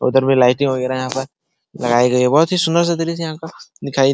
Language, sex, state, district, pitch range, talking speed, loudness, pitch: Hindi, male, Bihar, Araria, 130-160 Hz, 260 wpm, -17 LUFS, 135 Hz